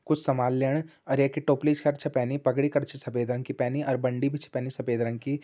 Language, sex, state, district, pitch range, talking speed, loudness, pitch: Hindi, male, Uttarakhand, Uttarkashi, 130-145 Hz, 265 wpm, -27 LUFS, 135 Hz